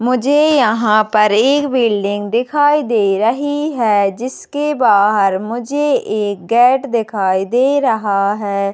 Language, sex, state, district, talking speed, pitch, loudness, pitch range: Hindi, female, Chhattisgarh, Jashpur, 125 wpm, 230 Hz, -14 LUFS, 205-270 Hz